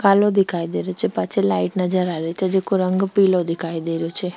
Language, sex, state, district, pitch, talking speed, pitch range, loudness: Rajasthani, female, Rajasthan, Churu, 180 Hz, 245 wpm, 165-190 Hz, -20 LUFS